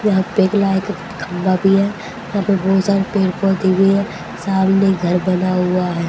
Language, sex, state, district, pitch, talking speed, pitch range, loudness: Hindi, female, Haryana, Jhajjar, 195 Hz, 195 wpm, 185-200 Hz, -17 LUFS